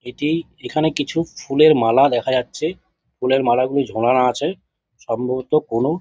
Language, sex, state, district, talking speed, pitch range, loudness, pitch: Bengali, male, West Bengal, Jhargram, 130 wpm, 125-155 Hz, -19 LUFS, 135 Hz